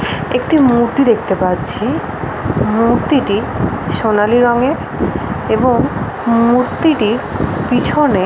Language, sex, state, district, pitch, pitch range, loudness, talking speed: Bengali, female, West Bengal, Paschim Medinipur, 235 Hz, 215-250 Hz, -14 LUFS, 75 wpm